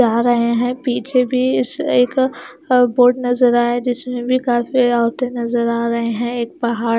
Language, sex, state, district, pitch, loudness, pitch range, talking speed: Hindi, female, Himachal Pradesh, Shimla, 240 Hz, -17 LUFS, 235-250 Hz, 165 wpm